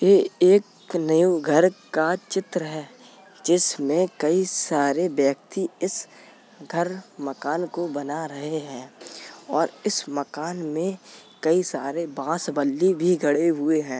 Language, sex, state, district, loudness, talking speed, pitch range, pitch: Hindi, male, Uttar Pradesh, Jalaun, -23 LUFS, 135 wpm, 150-185 Hz, 170 Hz